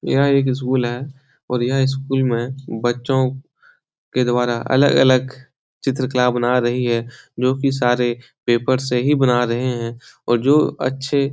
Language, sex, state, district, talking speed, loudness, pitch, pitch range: Hindi, male, Bihar, Supaul, 155 wpm, -19 LUFS, 130 Hz, 120-135 Hz